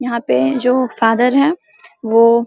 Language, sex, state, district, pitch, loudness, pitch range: Hindi, female, Bihar, Samastipur, 235 Hz, -14 LUFS, 225-255 Hz